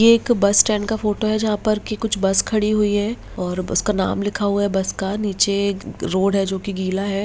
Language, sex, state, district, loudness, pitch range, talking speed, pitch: Hindi, female, Bihar, Begusarai, -20 LUFS, 195-215 Hz, 255 wpm, 205 Hz